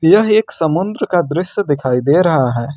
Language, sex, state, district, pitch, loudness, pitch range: Hindi, male, Jharkhand, Ranchi, 165 Hz, -15 LUFS, 140-185 Hz